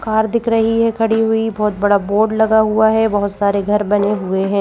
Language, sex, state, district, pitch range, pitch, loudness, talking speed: Hindi, female, Madhya Pradesh, Bhopal, 205-225 Hz, 215 Hz, -15 LUFS, 235 wpm